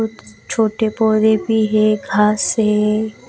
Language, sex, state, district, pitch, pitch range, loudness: Hindi, female, Bihar, West Champaran, 215 Hz, 210-220 Hz, -16 LUFS